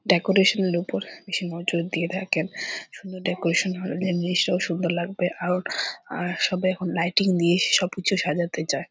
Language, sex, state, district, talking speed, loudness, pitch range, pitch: Bengali, female, West Bengal, Purulia, 150 wpm, -24 LUFS, 170-185 Hz, 180 Hz